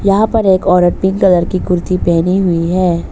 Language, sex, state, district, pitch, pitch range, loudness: Hindi, female, Arunachal Pradesh, Papum Pare, 185 Hz, 175-190 Hz, -12 LUFS